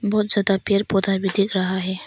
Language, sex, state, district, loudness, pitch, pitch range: Hindi, female, Arunachal Pradesh, Longding, -20 LUFS, 195 Hz, 190-205 Hz